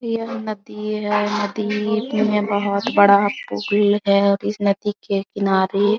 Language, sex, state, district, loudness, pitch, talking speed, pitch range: Hindi, female, Bihar, Araria, -19 LUFS, 205 Hz, 150 wpm, 200-210 Hz